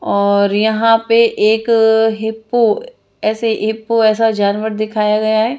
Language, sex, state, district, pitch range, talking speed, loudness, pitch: Hindi, female, Chandigarh, Chandigarh, 215-225 Hz, 130 wpm, -14 LUFS, 220 Hz